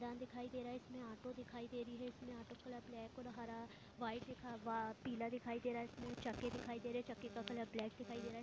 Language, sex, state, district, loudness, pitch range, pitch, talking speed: Hindi, female, Chhattisgarh, Raigarh, -49 LUFS, 230-245 Hz, 240 Hz, 270 wpm